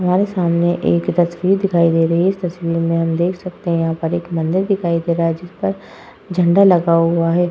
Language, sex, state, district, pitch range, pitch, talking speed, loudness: Hindi, female, Uttar Pradesh, Hamirpur, 165-180 Hz, 170 Hz, 225 wpm, -17 LUFS